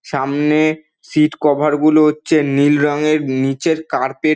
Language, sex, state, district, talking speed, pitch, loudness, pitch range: Bengali, male, West Bengal, Dakshin Dinajpur, 140 wpm, 150 Hz, -15 LUFS, 145-155 Hz